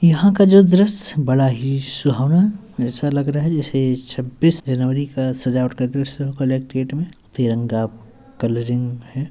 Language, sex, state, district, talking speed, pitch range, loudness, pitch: Hindi, male, Uttar Pradesh, Ghazipur, 135 wpm, 125-150 Hz, -18 LUFS, 135 Hz